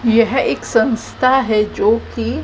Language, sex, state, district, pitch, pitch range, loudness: Hindi, female, Haryana, Jhajjar, 230 Hz, 220-250 Hz, -16 LUFS